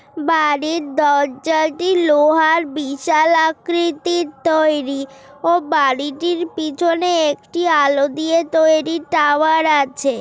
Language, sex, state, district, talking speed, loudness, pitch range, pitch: Bengali, female, West Bengal, Kolkata, 90 wpm, -16 LUFS, 290-330 Hz, 315 Hz